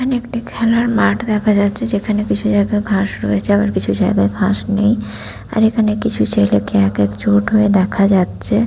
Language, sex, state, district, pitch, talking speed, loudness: Bengali, female, West Bengal, Paschim Medinipur, 205 Hz, 180 wpm, -15 LUFS